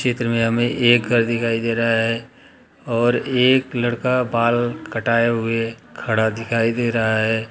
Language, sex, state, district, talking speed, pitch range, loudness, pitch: Hindi, male, Bihar, Jahanabad, 160 wpm, 115-120 Hz, -19 LUFS, 115 Hz